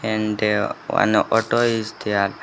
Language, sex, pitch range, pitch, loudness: English, male, 105-110 Hz, 110 Hz, -20 LUFS